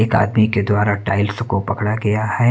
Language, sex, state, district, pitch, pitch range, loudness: Hindi, male, Haryana, Rohtak, 105 Hz, 100-110 Hz, -18 LUFS